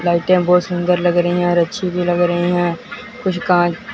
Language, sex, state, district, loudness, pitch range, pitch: Hindi, male, Punjab, Fazilka, -16 LUFS, 175-180 Hz, 175 Hz